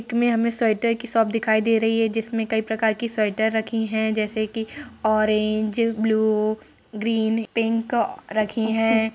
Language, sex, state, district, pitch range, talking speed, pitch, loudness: Hindi, female, Uttar Pradesh, Jalaun, 220-230 Hz, 165 wpm, 225 Hz, -22 LUFS